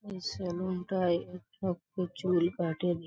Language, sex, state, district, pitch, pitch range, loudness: Bengali, male, West Bengal, Paschim Medinipur, 180 Hz, 175-185 Hz, -33 LUFS